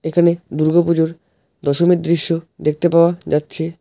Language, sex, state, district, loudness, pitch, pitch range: Bengali, male, West Bengal, Alipurduar, -17 LUFS, 165 Hz, 160-170 Hz